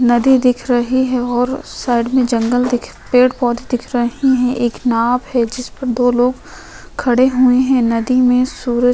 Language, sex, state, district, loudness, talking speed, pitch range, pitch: Hindi, female, Uttar Pradesh, Hamirpur, -15 LUFS, 190 wpm, 245-255 Hz, 250 Hz